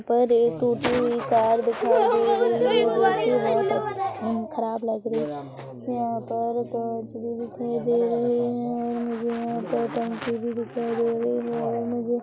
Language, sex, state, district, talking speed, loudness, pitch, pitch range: Hindi, female, Chhattisgarh, Rajnandgaon, 180 wpm, -24 LUFS, 235 Hz, 230-240 Hz